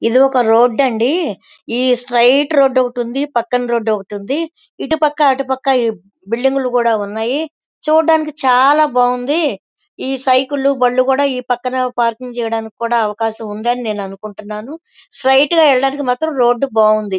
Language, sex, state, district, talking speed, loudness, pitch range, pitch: Telugu, female, Andhra Pradesh, Krishna, 135 wpm, -15 LUFS, 230-275 Hz, 250 Hz